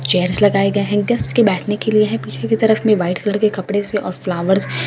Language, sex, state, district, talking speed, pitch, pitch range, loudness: Hindi, female, Delhi, New Delhi, 245 wpm, 205 Hz, 190-215 Hz, -17 LUFS